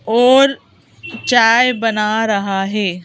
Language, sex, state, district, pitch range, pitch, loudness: Hindi, female, Madhya Pradesh, Bhopal, 205-245 Hz, 225 Hz, -14 LUFS